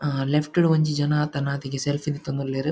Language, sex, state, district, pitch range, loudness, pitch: Tulu, male, Karnataka, Dakshina Kannada, 140-150 Hz, -24 LUFS, 145 Hz